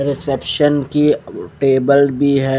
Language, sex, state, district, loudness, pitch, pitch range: Hindi, male, Chandigarh, Chandigarh, -15 LUFS, 140 Hz, 135-145 Hz